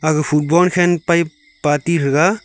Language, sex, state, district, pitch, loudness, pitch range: Wancho, male, Arunachal Pradesh, Longding, 160 Hz, -16 LUFS, 150-175 Hz